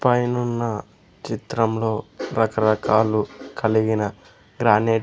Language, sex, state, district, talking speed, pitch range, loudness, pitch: Telugu, male, Andhra Pradesh, Sri Satya Sai, 70 wpm, 110-120 Hz, -22 LUFS, 110 Hz